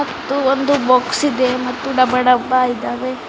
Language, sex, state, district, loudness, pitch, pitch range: Kannada, female, Karnataka, Bidar, -16 LUFS, 255 Hz, 250-275 Hz